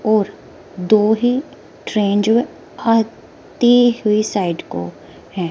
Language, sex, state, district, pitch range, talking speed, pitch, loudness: Hindi, female, Himachal Pradesh, Shimla, 180-230 Hz, 120 wpm, 215 Hz, -17 LUFS